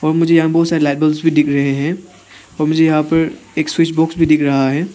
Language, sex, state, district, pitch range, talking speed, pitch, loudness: Hindi, male, Arunachal Pradesh, Papum Pare, 150-165 Hz, 240 wpm, 155 Hz, -14 LUFS